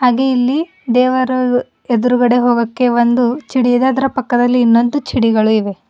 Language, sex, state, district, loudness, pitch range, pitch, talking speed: Kannada, female, Karnataka, Bidar, -14 LUFS, 240-255 Hz, 245 Hz, 110 wpm